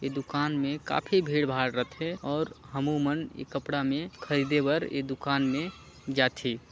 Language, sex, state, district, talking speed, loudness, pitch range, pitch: Chhattisgarhi, male, Chhattisgarh, Sarguja, 160 wpm, -29 LUFS, 135-150 Hz, 140 Hz